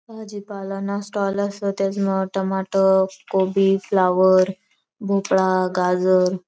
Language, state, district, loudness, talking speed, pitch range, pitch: Bhili, Maharashtra, Dhule, -20 LUFS, 110 wpm, 185-200 Hz, 195 Hz